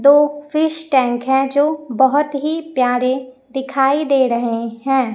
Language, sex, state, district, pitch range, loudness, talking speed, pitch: Hindi, female, Chhattisgarh, Raipur, 255-290 Hz, -17 LUFS, 140 wpm, 270 Hz